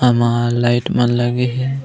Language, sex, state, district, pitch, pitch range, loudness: Chhattisgarhi, male, Chhattisgarh, Raigarh, 120 Hz, 120-125 Hz, -16 LUFS